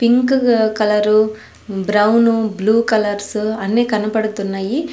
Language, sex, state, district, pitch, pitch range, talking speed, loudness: Telugu, female, Andhra Pradesh, Sri Satya Sai, 215 Hz, 210-230 Hz, 85 wpm, -16 LUFS